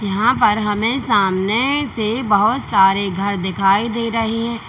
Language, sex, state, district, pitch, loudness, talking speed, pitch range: Hindi, female, Uttar Pradesh, Lalitpur, 215 Hz, -17 LUFS, 155 wpm, 200-235 Hz